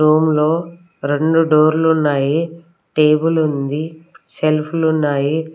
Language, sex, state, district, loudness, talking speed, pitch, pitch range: Telugu, female, Andhra Pradesh, Sri Satya Sai, -16 LUFS, 95 wpm, 155 Hz, 150-165 Hz